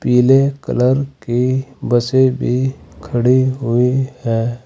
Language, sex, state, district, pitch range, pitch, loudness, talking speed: Hindi, male, Uttar Pradesh, Saharanpur, 120-130 Hz, 125 Hz, -16 LUFS, 105 wpm